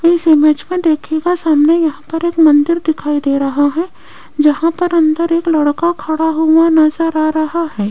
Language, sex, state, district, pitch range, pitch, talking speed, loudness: Hindi, female, Rajasthan, Jaipur, 300-335 Hz, 320 Hz, 190 wpm, -13 LUFS